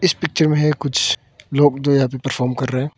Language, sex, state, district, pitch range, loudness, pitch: Hindi, male, Arunachal Pradesh, Longding, 130-150 Hz, -18 LUFS, 140 Hz